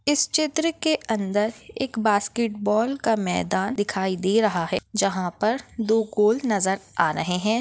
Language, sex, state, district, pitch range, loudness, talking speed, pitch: Hindi, female, Maharashtra, Nagpur, 195-235 Hz, -23 LUFS, 165 wpm, 215 Hz